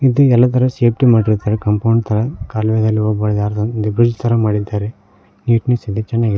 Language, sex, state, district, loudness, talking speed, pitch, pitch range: Kannada, male, Karnataka, Koppal, -15 LUFS, 160 wpm, 110 Hz, 105-120 Hz